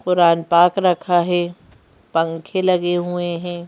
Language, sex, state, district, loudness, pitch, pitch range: Hindi, female, Madhya Pradesh, Bhopal, -18 LUFS, 175 Hz, 170-180 Hz